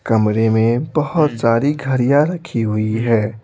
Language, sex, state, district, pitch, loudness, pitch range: Hindi, male, Bihar, Patna, 115 Hz, -17 LUFS, 110-145 Hz